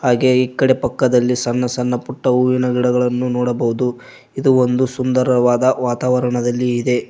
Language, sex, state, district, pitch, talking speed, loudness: Kannada, male, Karnataka, Koppal, 125 Hz, 125 wpm, -17 LUFS